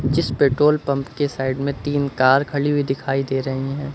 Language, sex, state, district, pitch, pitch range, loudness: Hindi, male, Uttar Pradesh, Lucknow, 140 Hz, 135-145 Hz, -20 LUFS